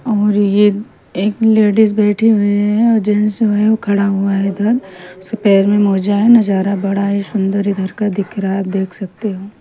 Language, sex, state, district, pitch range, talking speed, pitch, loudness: Hindi, female, Punjab, Pathankot, 195-215 Hz, 205 wpm, 205 Hz, -14 LUFS